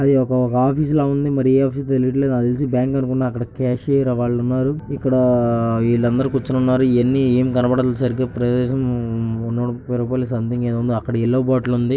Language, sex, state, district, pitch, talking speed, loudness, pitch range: Telugu, male, Andhra Pradesh, Guntur, 125 Hz, 145 wpm, -19 LUFS, 120-130 Hz